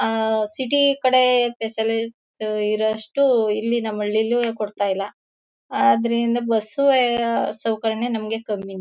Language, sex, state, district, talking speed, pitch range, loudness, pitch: Kannada, female, Karnataka, Mysore, 115 wpm, 215-240 Hz, -21 LUFS, 225 Hz